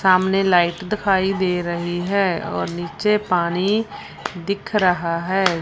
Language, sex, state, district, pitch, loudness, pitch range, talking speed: Hindi, female, Punjab, Fazilka, 185 Hz, -20 LUFS, 175-200 Hz, 130 wpm